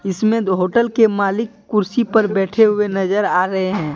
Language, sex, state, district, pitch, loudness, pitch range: Hindi, male, Jharkhand, Deoghar, 205 Hz, -17 LUFS, 190-220 Hz